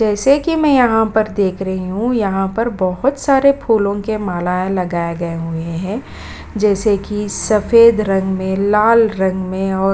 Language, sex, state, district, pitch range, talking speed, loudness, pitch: Hindi, female, Bihar, Kishanganj, 190-225 Hz, 175 wpm, -16 LUFS, 205 Hz